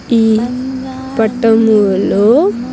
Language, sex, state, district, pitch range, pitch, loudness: Telugu, female, Andhra Pradesh, Sri Satya Sai, 220-255 Hz, 230 Hz, -12 LUFS